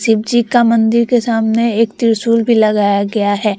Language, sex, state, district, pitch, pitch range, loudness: Hindi, female, Bihar, Vaishali, 225 Hz, 215-235 Hz, -13 LUFS